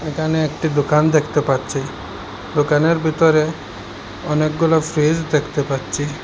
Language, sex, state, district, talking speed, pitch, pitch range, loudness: Bengali, male, Assam, Hailakandi, 105 wpm, 150 Hz, 135-155 Hz, -18 LUFS